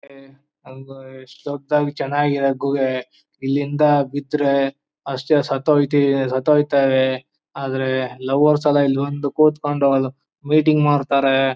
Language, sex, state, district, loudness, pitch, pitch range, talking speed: Kannada, male, Karnataka, Chamarajanagar, -19 LUFS, 140 Hz, 135-145 Hz, 85 wpm